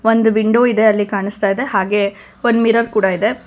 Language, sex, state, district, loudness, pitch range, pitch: Kannada, female, Karnataka, Bangalore, -15 LUFS, 200-225 Hz, 215 Hz